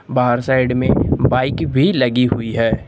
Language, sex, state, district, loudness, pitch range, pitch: Hindi, male, Uttar Pradesh, Lucknow, -16 LUFS, 120-130 Hz, 125 Hz